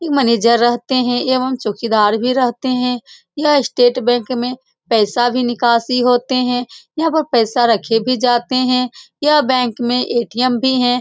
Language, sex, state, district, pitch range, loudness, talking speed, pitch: Hindi, female, Bihar, Saran, 240-255 Hz, -15 LUFS, 180 wpm, 245 Hz